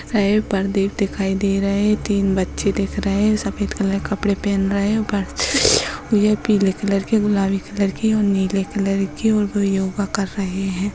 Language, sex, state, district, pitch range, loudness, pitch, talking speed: Hindi, female, Karnataka, Dakshina Kannada, 195-205 Hz, -19 LUFS, 200 Hz, 175 wpm